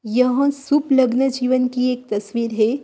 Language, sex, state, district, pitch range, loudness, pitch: Hindi, female, Uttar Pradesh, Hamirpur, 235-270 Hz, -19 LUFS, 250 Hz